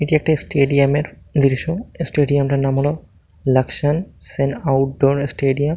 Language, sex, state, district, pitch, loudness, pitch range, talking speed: Bengali, male, West Bengal, Malda, 140 Hz, -18 LUFS, 135-150 Hz, 145 wpm